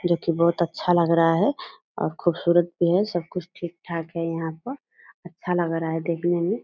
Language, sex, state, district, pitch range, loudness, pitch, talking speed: Hindi, female, Bihar, Purnia, 165-175 Hz, -24 LUFS, 170 Hz, 200 wpm